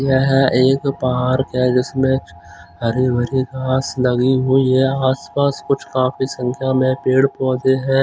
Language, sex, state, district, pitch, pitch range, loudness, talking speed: Hindi, male, Chandigarh, Chandigarh, 130 Hz, 125-135 Hz, -17 LUFS, 150 wpm